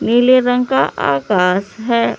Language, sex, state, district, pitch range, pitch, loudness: Hindi, female, Jharkhand, Palamu, 180-245 Hz, 220 Hz, -15 LUFS